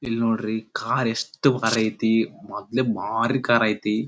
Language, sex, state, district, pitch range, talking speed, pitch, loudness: Kannada, male, Karnataka, Dharwad, 110-115 Hz, 145 wpm, 115 Hz, -23 LUFS